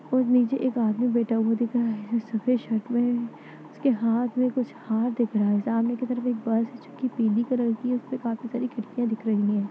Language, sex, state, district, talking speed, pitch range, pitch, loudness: Hindi, female, Chhattisgarh, Bastar, 245 wpm, 225-250 Hz, 235 Hz, -26 LUFS